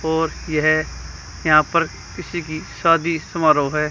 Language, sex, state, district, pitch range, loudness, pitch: Hindi, female, Haryana, Charkhi Dadri, 150-165 Hz, -19 LUFS, 155 Hz